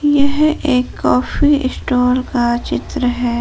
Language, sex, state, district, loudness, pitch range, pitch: Hindi, female, Jharkhand, Palamu, -16 LUFS, 245-290 Hz, 255 Hz